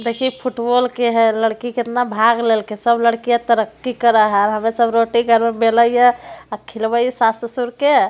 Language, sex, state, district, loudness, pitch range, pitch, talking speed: Hindi, female, Bihar, Jamui, -16 LUFS, 225-245 Hz, 235 Hz, 200 wpm